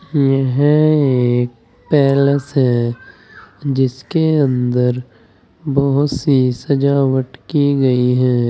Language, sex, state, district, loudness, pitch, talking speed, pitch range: Hindi, male, Uttar Pradesh, Saharanpur, -15 LUFS, 135 Hz, 85 wpm, 125-140 Hz